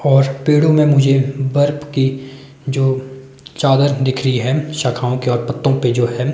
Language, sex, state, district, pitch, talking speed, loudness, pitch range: Hindi, male, Himachal Pradesh, Shimla, 135 Hz, 170 wpm, -16 LUFS, 130-145 Hz